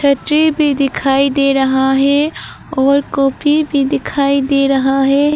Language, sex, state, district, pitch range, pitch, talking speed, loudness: Hindi, female, Arunachal Pradesh, Papum Pare, 270-285 Hz, 275 Hz, 145 wpm, -13 LUFS